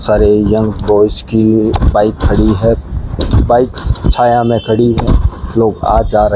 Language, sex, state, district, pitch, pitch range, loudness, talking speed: Hindi, male, Rajasthan, Bikaner, 105 Hz, 100-115 Hz, -12 LUFS, 160 wpm